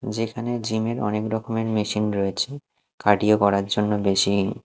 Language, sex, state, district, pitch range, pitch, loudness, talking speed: Bengali, male, Odisha, Malkangiri, 105-115 Hz, 105 Hz, -23 LUFS, 155 wpm